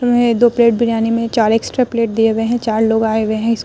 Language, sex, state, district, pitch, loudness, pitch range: Hindi, female, Bihar, Vaishali, 230 Hz, -15 LUFS, 225-235 Hz